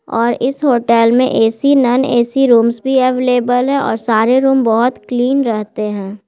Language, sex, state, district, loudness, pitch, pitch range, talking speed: Hindi, female, Bihar, Gaya, -13 LUFS, 245 Hz, 230-260 Hz, 170 wpm